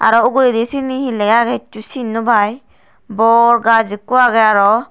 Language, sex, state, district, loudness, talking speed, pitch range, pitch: Chakma, female, Tripura, Dhalai, -13 LUFS, 185 wpm, 220-245 Hz, 230 Hz